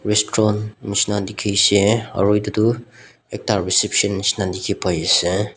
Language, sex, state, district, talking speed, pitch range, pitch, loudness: Nagamese, male, Nagaland, Dimapur, 130 wpm, 100-105 Hz, 105 Hz, -18 LUFS